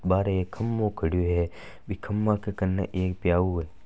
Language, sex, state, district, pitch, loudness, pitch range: Marwari, male, Rajasthan, Nagaur, 95 Hz, -27 LUFS, 90-105 Hz